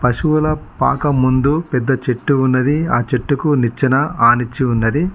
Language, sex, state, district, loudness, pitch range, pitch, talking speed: Telugu, male, Telangana, Mahabubabad, -16 LUFS, 125-150 Hz, 135 Hz, 130 wpm